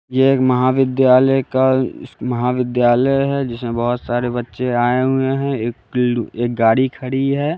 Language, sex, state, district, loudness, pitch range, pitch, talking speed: Hindi, male, Bihar, West Champaran, -17 LUFS, 120-135 Hz, 125 Hz, 135 wpm